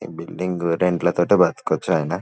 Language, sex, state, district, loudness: Telugu, male, Telangana, Nalgonda, -20 LUFS